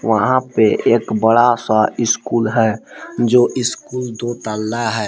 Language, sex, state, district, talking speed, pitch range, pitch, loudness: Hindi, male, Jharkhand, Palamu, 165 wpm, 110-120 Hz, 115 Hz, -16 LUFS